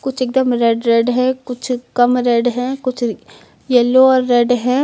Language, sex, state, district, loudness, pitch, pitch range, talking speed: Hindi, female, Uttar Pradesh, Lucknow, -15 LUFS, 250 Hz, 240-255 Hz, 175 wpm